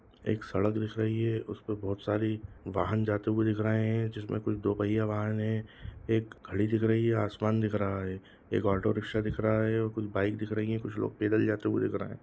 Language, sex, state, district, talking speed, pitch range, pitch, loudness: Hindi, male, Bihar, Jahanabad, 230 wpm, 105-110 Hz, 110 Hz, -31 LUFS